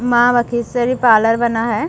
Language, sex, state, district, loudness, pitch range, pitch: Hindi, female, Chhattisgarh, Rajnandgaon, -15 LUFS, 230-245 Hz, 240 Hz